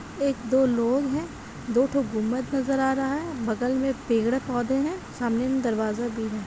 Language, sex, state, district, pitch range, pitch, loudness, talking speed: Hindi, female, Bihar, East Champaran, 235-270 Hz, 255 Hz, -26 LUFS, 185 wpm